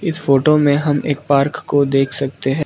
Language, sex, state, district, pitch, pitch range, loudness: Hindi, male, Arunachal Pradesh, Lower Dibang Valley, 145 Hz, 135-150 Hz, -16 LUFS